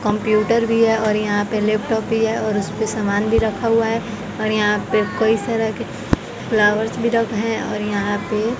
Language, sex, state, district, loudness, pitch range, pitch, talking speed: Hindi, female, Bihar, West Champaran, -19 LUFS, 210-225 Hz, 215 Hz, 215 wpm